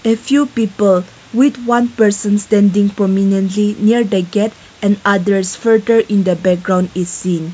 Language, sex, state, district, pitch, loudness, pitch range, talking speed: English, female, Nagaland, Kohima, 205 Hz, -14 LUFS, 190-225 Hz, 150 wpm